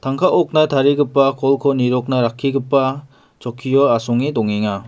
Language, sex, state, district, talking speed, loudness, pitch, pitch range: Garo, male, Meghalaya, West Garo Hills, 110 wpm, -16 LUFS, 135 Hz, 120-140 Hz